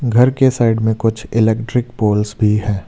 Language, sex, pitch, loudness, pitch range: Hindi, male, 110 Hz, -15 LUFS, 105-120 Hz